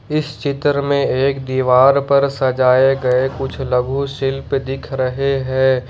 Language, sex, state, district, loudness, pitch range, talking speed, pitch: Hindi, male, Jharkhand, Ranchi, -17 LUFS, 130-140 Hz, 140 wpm, 135 Hz